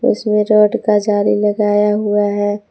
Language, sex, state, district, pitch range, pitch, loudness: Hindi, female, Jharkhand, Palamu, 205-210 Hz, 210 Hz, -14 LUFS